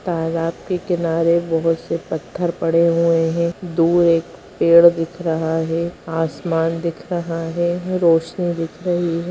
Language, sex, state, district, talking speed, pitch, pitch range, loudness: Hindi, female, Bihar, Bhagalpur, 150 wpm, 170 Hz, 165-175 Hz, -19 LUFS